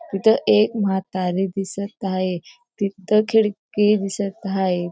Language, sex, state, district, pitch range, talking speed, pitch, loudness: Marathi, female, Maharashtra, Dhule, 190-215 Hz, 110 wpm, 195 Hz, -21 LUFS